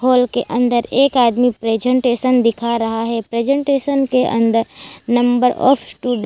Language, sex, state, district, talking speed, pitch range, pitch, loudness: Hindi, female, Gujarat, Valsad, 155 wpm, 230-255 Hz, 245 Hz, -16 LUFS